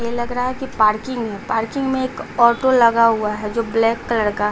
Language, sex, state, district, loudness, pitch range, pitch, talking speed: Hindi, female, Bihar, Patna, -18 LUFS, 220-250 Hz, 230 Hz, 240 wpm